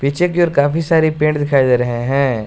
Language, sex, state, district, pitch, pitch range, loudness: Hindi, male, Jharkhand, Garhwa, 145 Hz, 130-160 Hz, -15 LUFS